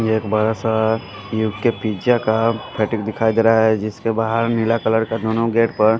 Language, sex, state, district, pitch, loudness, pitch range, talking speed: Hindi, male, Punjab, Fazilka, 110 Hz, -19 LUFS, 110-115 Hz, 200 wpm